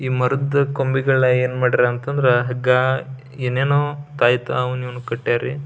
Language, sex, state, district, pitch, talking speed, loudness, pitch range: Kannada, male, Karnataka, Belgaum, 130 Hz, 125 wpm, -19 LUFS, 125-135 Hz